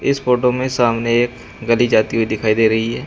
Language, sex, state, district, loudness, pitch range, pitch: Hindi, male, Uttar Pradesh, Shamli, -16 LUFS, 110-125 Hz, 120 Hz